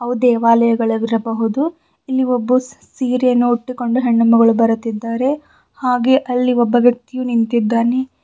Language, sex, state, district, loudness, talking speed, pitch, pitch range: Kannada, female, Karnataka, Bidar, -16 LUFS, 100 wpm, 245 Hz, 230-255 Hz